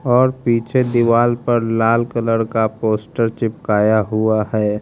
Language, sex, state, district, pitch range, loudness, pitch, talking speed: Hindi, male, Haryana, Rohtak, 110-120 Hz, -17 LUFS, 115 Hz, 135 wpm